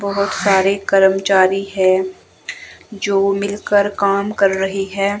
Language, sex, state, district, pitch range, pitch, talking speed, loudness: Hindi, female, Himachal Pradesh, Shimla, 195-200 Hz, 195 Hz, 115 wpm, -16 LUFS